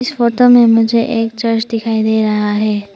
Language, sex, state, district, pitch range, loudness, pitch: Hindi, female, Arunachal Pradesh, Papum Pare, 220-235 Hz, -13 LUFS, 225 Hz